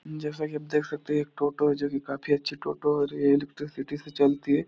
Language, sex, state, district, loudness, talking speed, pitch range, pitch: Hindi, male, Bihar, Supaul, -28 LUFS, 270 wpm, 140-150 Hz, 145 Hz